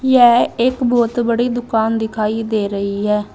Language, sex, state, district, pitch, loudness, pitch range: Hindi, female, Uttar Pradesh, Saharanpur, 230 Hz, -16 LUFS, 215-240 Hz